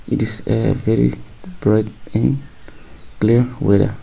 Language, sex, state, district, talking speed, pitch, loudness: English, male, Nagaland, Kohima, 105 wpm, 105 Hz, -18 LUFS